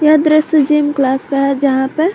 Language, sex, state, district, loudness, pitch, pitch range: Hindi, female, Jharkhand, Garhwa, -13 LUFS, 290 Hz, 275-310 Hz